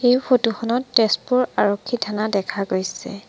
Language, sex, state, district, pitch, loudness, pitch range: Assamese, female, Assam, Sonitpur, 225 Hz, -20 LUFS, 205-250 Hz